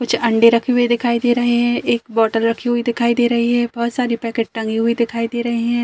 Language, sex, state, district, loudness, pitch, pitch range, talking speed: Hindi, female, Chhattisgarh, Balrampur, -17 LUFS, 235 Hz, 230-240 Hz, 265 wpm